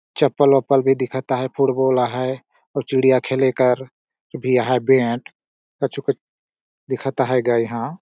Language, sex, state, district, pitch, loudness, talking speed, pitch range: Surgujia, male, Chhattisgarh, Sarguja, 130 Hz, -19 LUFS, 150 wpm, 125-135 Hz